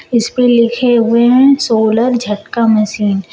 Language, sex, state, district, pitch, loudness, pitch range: Hindi, female, Uttar Pradesh, Shamli, 235 Hz, -11 LUFS, 220-245 Hz